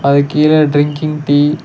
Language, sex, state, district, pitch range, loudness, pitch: Tamil, male, Tamil Nadu, Nilgiris, 145-150 Hz, -12 LUFS, 150 Hz